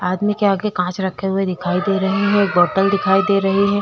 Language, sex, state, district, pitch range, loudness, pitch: Hindi, female, Uttar Pradesh, Budaun, 185-200 Hz, -17 LUFS, 195 Hz